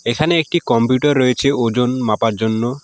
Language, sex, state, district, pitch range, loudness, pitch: Bengali, male, West Bengal, Alipurduar, 115-140 Hz, -16 LUFS, 125 Hz